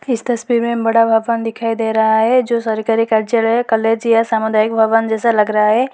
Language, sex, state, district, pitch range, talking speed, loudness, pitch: Hindi, female, Uttar Pradesh, Lalitpur, 220-235 Hz, 200 wpm, -15 LUFS, 225 Hz